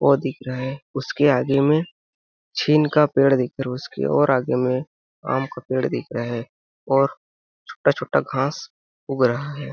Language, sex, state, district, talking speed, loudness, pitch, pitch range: Hindi, male, Chhattisgarh, Balrampur, 175 wpm, -21 LUFS, 135 Hz, 125-145 Hz